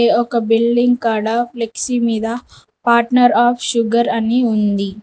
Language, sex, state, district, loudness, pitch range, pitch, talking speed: Telugu, female, Telangana, Mahabubabad, -16 LUFS, 225-240 Hz, 235 Hz, 130 wpm